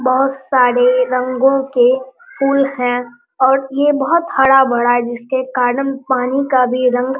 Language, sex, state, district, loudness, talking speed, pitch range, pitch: Hindi, male, Bihar, Araria, -15 LUFS, 150 wpm, 250-270 Hz, 260 Hz